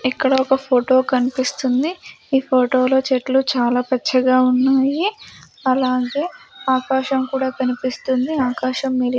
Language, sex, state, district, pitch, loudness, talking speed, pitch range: Telugu, female, Andhra Pradesh, Sri Satya Sai, 260 Hz, -18 LUFS, 110 wpm, 255-270 Hz